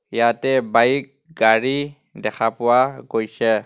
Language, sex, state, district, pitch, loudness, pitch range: Assamese, male, Assam, Kamrup Metropolitan, 120 Hz, -19 LUFS, 115-135 Hz